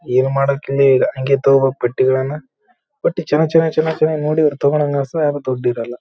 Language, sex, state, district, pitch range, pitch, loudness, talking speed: Kannada, male, Karnataka, Raichur, 130-150 Hz, 140 Hz, -16 LUFS, 160 wpm